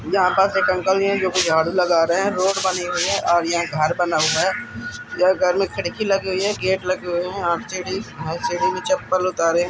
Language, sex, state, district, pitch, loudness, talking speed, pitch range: Hindi, male, Bihar, Araria, 185 Hz, -20 LUFS, 245 wpm, 175-195 Hz